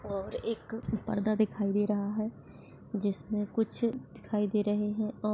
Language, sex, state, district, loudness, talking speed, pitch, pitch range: Hindi, female, Chhattisgarh, Jashpur, -32 LUFS, 160 wpm, 210 Hz, 205-220 Hz